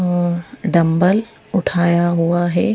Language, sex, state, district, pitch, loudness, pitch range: Hindi, female, Madhya Pradesh, Bhopal, 175 Hz, -17 LUFS, 170-185 Hz